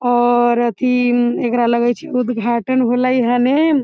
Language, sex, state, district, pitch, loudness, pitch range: Maithili, female, Bihar, Samastipur, 245 Hz, -16 LUFS, 240-250 Hz